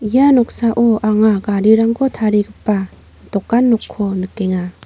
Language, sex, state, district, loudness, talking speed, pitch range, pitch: Garo, female, Meghalaya, North Garo Hills, -15 LUFS, 100 wpm, 200-235 Hz, 215 Hz